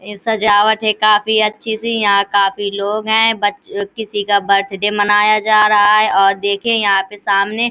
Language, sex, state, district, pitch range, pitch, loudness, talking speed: Hindi, female, Uttar Pradesh, Hamirpur, 200-215 Hz, 205 Hz, -14 LUFS, 170 wpm